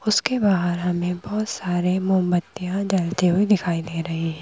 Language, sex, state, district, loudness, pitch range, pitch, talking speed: Hindi, female, Madhya Pradesh, Bhopal, -22 LUFS, 175-200 Hz, 180 Hz, 165 wpm